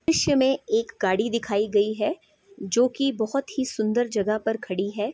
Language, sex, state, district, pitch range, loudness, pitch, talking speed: Hindi, female, Chhattisgarh, Bastar, 210-275 Hz, -24 LUFS, 235 Hz, 185 wpm